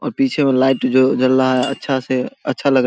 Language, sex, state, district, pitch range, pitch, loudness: Hindi, male, Bihar, Samastipur, 130-135 Hz, 130 Hz, -16 LUFS